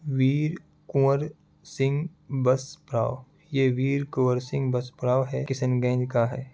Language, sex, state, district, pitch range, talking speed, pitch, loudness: Hindi, male, Bihar, Kishanganj, 125-140 Hz, 145 wpm, 135 Hz, -26 LUFS